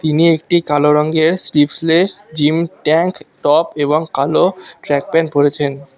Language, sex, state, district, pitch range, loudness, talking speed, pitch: Bengali, male, West Bengal, Alipurduar, 145-165 Hz, -15 LUFS, 140 wpm, 155 Hz